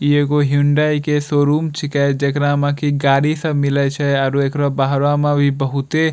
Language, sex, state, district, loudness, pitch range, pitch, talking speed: Angika, male, Bihar, Bhagalpur, -16 LUFS, 140-145 Hz, 145 Hz, 205 wpm